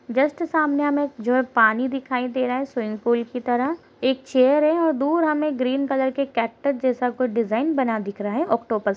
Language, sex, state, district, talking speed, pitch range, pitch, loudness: Hindi, female, Uttar Pradesh, Deoria, 225 wpm, 235-285 Hz, 260 Hz, -22 LUFS